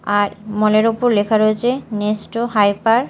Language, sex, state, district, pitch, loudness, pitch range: Bengali, female, Odisha, Malkangiri, 215 Hz, -17 LUFS, 210-230 Hz